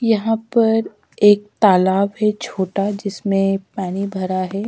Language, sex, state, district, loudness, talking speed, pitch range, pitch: Hindi, female, Madhya Pradesh, Dhar, -18 LUFS, 130 wpm, 195-215 Hz, 200 Hz